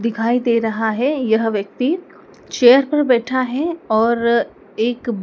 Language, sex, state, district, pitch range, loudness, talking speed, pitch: Hindi, female, Madhya Pradesh, Dhar, 225-275 Hz, -17 LUFS, 140 wpm, 240 Hz